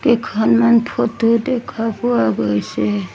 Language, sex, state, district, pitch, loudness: Assamese, female, Assam, Sonitpur, 225 Hz, -17 LUFS